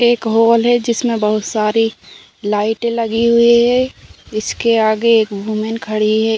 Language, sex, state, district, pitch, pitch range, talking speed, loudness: Hindi, female, Uttar Pradesh, Ghazipur, 225 Hz, 215-235 Hz, 150 wpm, -15 LUFS